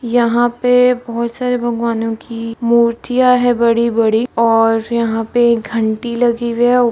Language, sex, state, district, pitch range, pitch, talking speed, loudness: Hindi, female, Bihar, Kishanganj, 230-240 Hz, 235 Hz, 155 wpm, -15 LUFS